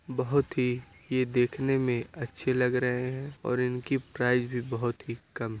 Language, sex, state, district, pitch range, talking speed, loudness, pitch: Hindi, male, Uttar Pradesh, Budaun, 120-130 Hz, 180 wpm, -29 LUFS, 125 Hz